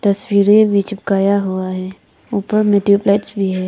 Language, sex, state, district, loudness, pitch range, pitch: Hindi, female, Arunachal Pradesh, Papum Pare, -15 LUFS, 195-205 Hz, 200 Hz